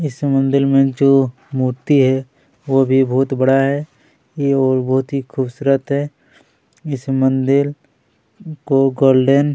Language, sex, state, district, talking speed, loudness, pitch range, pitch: Hindi, male, Chhattisgarh, Kabirdham, 140 wpm, -16 LUFS, 130-140 Hz, 135 Hz